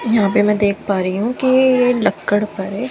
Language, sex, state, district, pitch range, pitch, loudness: Hindi, female, Haryana, Jhajjar, 200-250 Hz, 210 Hz, -16 LUFS